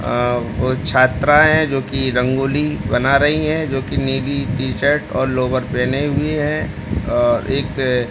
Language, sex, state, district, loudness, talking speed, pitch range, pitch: Hindi, male, Uttar Pradesh, Deoria, -17 LUFS, 155 wpm, 125-145 Hz, 135 Hz